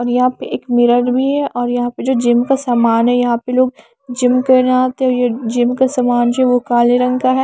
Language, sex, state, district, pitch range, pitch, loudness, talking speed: Hindi, female, Maharashtra, Mumbai Suburban, 240-255 Hz, 250 Hz, -14 LUFS, 265 wpm